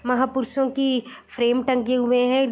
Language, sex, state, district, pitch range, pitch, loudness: Hindi, female, Bihar, East Champaran, 245-265 Hz, 255 Hz, -22 LUFS